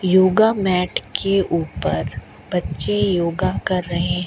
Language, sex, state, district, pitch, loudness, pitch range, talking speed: Hindi, female, Rajasthan, Bikaner, 180 Hz, -20 LUFS, 170-190 Hz, 110 wpm